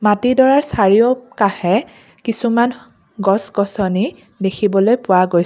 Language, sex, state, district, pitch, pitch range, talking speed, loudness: Assamese, female, Assam, Kamrup Metropolitan, 205 Hz, 195-240 Hz, 90 wpm, -16 LUFS